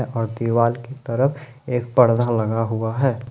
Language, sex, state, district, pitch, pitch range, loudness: Hindi, male, Jharkhand, Ranchi, 120 Hz, 115-125 Hz, -20 LUFS